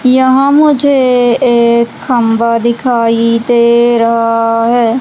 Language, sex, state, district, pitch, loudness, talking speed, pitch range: Hindi, female, Madhya Pradesh, Umaria, 235 Hz, -9 LUFS, 95 wpm, 230-255 Hz